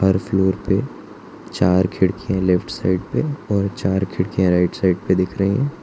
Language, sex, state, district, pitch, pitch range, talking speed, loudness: Hindi, male, Gujarat, Valsad, 95 Hz, 90-100 Hz, 175 wpm, -19 LUFS